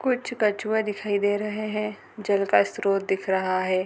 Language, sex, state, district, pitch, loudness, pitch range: Hindi, female, Bihar, Gopalganj, 205 Hz, -25 LUFS, 195-215 Hz